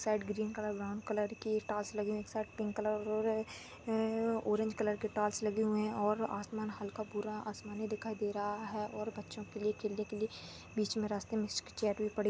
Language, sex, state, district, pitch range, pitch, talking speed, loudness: Hindi, female, Chhattisgarh, Rajnandgaon, 210-215 Hz, 215 Hz, 215 wpm, -37 LUFS